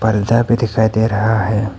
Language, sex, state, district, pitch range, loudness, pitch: Hindi, male, Arunachal Pradesh, Papum Pare, 105-115 Hz, -15 LUFS, 110 Hz